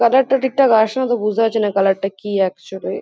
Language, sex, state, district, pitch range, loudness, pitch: Bengali, female, West Bengal, Kolkata, 195-260 Hz, -17 LUFS, 220 Hz